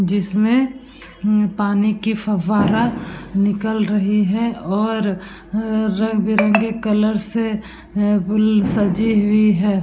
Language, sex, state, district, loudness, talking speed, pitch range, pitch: Hindi, female, Bihar, Vaishali, -18 LUFS, 90 wpm, 205-220 Hz, 210 Hz